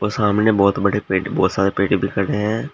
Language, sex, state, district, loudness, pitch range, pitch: Hindi, male, Uttar Pradesh, Shamli, -18 LUFS, 100-105 Hz, 100 Hz